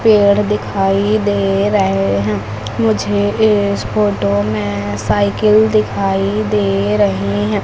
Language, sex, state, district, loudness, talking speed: Hindi, female, Madhya Pradesh, Umaria, -15 LUFS, 110 wpm